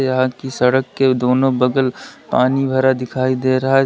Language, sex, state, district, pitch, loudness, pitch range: Hindi, male, Uttar Pradesh, Lalitpur, 130 Hz, -17 LUFS, 125-135 Hz